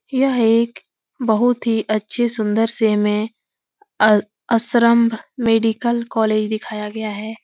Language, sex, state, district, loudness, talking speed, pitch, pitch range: Hindi, female, Uttar Pradesh, Etah, -18 LUFS, 120 wpm, 225 Hz, 215-235 Hz